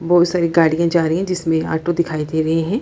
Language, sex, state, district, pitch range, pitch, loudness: Hindi, female, Bihar, Lakhisarai, 160-175 Hz, 165 Hz, -17 LUFS